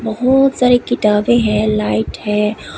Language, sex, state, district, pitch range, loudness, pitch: Hindi, female, Tripura, West Tripura, 210-245 Hz, -14 LUFS, 220 Hz